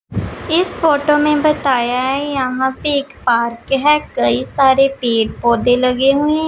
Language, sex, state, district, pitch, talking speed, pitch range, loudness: Hindi, female, Punjab, Pathankot, 270 Hz, 140 wpm, 245-295 Hz, -15 LUFS